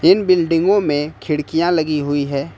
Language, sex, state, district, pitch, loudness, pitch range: Hindi, male, Jharkhand, Ranchi, 155 Hz, -17 LUFS, 145-170 Hz